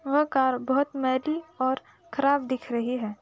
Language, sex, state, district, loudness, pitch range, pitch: Hindi, female, Uttar Pradesh, Jalaun, -27 LUFS, 250-280 Hz, 260 Hz